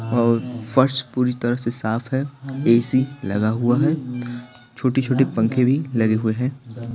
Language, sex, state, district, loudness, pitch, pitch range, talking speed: Hindi, male, Bihar, Patna, -21 LUFS, 125 Hz, 115-130 Hz, 145 wpm